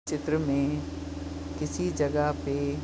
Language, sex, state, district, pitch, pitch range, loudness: Hindi, male, Chhattisgarh, Bastar, 140 Hz, 95-150 Hz, -30 LUFS